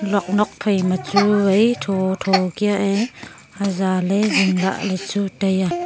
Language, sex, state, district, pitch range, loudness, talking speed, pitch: Wancho, female, Arunachal Pradesh, Longding, 190-205 Hz, -19 LUFS, 145 wpm, 195 Hz